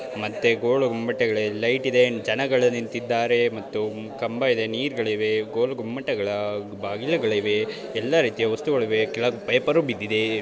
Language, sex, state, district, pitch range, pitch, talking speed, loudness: Kannada, male, Karnataka, Bijapur, 110-135 Hz, 120 Hz, 120 wpm, -23 LUFS